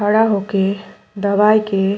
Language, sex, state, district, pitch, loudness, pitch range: Bhojpuri, female, Uttar Pradesh, Deoria, 205 Hz, -16 LUFS, 195-210 Hz